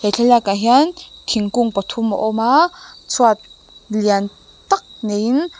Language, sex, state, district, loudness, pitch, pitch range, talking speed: Mizo, female, Mizoram, Aizawl, -17 LUFS, 230 Hz, 210-280 Hz, 120 wpm